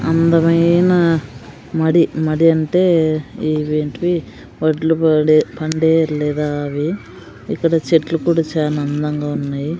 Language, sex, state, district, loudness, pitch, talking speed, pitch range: Telugu, female, Andhra Pradesh, Sri Satya Sai, -16 LUFS, 160 Hz, 105 wpm, 150-165 Hz